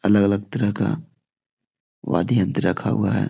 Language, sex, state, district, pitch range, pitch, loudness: Hindi, male, Bihar, Jahanabad, 100-110 Hz, 105 Hz, -22 LUFS